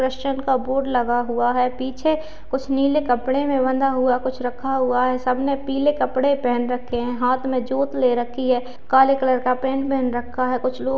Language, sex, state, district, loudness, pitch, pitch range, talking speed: Hindi, female, Bihar, Madhepura, -21 LUFS, 260 Hz, 250-270 Hz, 220 wpm